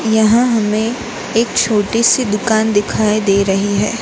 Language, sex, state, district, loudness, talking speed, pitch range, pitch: Hindi, female, Gujarat, Gandhinagar, -14 LUFS, 150 wpm, 210-230 Hz, 220 Hz